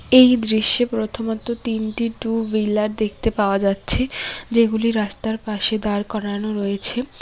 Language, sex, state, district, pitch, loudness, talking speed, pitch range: Bengali, female, West Bengal, Cooch Behar, 220 Hz, -20 LUFS, 125 wpm, 210-230 Hz